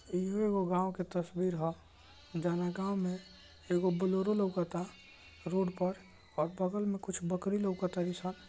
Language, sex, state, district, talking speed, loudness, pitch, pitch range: Bhojpuri, male, Bihar, Gopalganj, 150 wpm, -35 LUFS, 185 Hz, 175-190 Hz